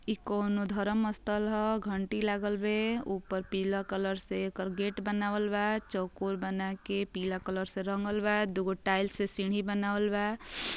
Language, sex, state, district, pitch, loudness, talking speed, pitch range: Bhojpuri, female, Uttar Pradesh, Ghazipur, 200 Hz, -32 LUFS, 160 wpm, 195-210 Hz